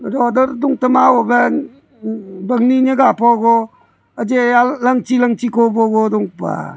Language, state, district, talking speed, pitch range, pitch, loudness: Nyishi, Arunachal Pradesh, Papum Pare, 60 wpm, 230-255 Hz, 245 Hz, -14 LUFS